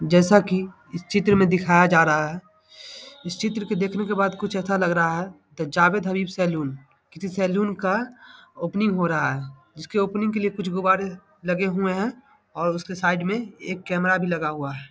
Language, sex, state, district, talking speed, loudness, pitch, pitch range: Hindi, male, Bihar, Samastipur, 200 wpm, -23 LUFS, 185 Hz, 170-205 Hz